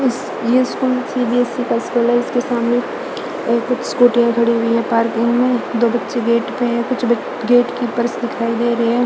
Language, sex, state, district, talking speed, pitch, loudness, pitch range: Hindi, female, Chandigarh, Chandigarh, 200 wpm, 240 Hz, -17 LUFS, 235-245 Hz